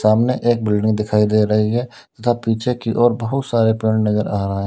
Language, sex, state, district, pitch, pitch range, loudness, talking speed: Hindi, male, Uttar Pradesh, Lalitpur, 110 Hz, 105-120 Hz, -18 LUFS, 230 wpm